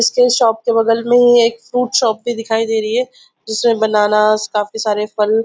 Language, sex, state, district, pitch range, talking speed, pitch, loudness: Hindi, female, Maharashtra, Nagpur, 215-240 Hz, 200 wpm, 225 Hz, -15 LUFS